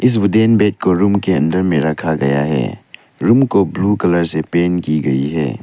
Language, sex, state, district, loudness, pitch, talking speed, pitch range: Hindi, male, Arunachal Pradesh, Lower Dibang Valley, -15 LUFS, 85 Hz, 200 wpm, 75-100 Hz